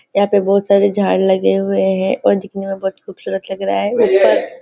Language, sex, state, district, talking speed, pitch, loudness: Hindi, female, Maharashtra, Nagpur, 205 wpm, 195 Hz, -15 LUFS